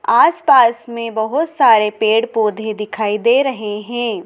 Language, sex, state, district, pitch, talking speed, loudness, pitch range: Hindi, female, Madhya Pradesh, Dhar, 230 Hz, 155 wpm, -15 LUFS, 215-260 Hz